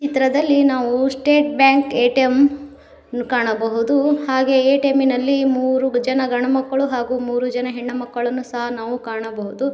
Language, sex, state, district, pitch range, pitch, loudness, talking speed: Kannada, female, Karnataka, Koppal, 245-275 Hz, 260 Hz, -18 LUFS, 155 wpm